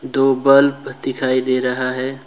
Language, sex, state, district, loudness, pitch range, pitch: Hindi, male, West Bengal, Alipurduar, -17 LUFS, 130-135 Hz, 130 Hz